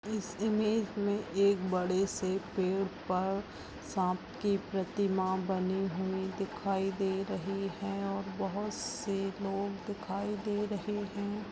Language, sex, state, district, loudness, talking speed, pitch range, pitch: Hindi, female, Chhattisgarh, Balrampur, -34 LUFS, 135 wpm, 190-205 Hz, 195 Hz